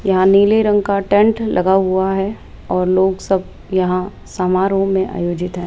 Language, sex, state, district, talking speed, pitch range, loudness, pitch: Hindi, female, Rajasthan, Jaipur, 170 wpm, 185-195 Hz, -16 LUFS, 190 Hz